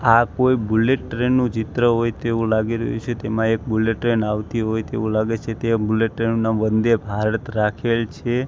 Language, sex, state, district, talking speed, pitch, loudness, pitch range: Gujarati, male, Gujarat, Gandhinagar, 205 wpm, 115 Hz, -20 LUFS, 110-115 Hz